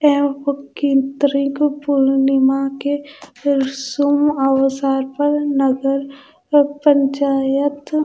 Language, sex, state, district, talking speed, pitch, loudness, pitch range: Hindi, female, Bihar, Katihar, 60 wpm, 280 Hz, -17 LUFS, 270-285 Hz